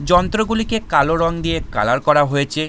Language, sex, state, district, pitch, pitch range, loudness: Bengali, male, West Bengal, Jalpaiguri, 165 Hz, 150-215 Hz, -17 LUFS